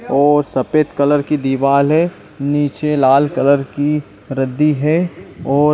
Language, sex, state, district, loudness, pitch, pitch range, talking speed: Hindi, male, Chhattisgarh, Bilaspur, -15 LUFS, 145 Hz, 140-150 Hz, 145 wpm